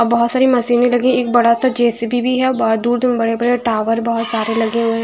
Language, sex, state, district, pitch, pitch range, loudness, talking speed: Hindi, female, Punjab, Fazilka, 235 Hz, 230-245 Hz, -15 LUFS, 310 wpm